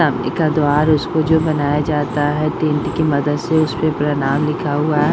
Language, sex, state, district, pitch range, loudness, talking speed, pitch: Hindi, female, Bihar, Purnia, 145-155 Hz, -17 LUFS, 185 wpm, 150 Hz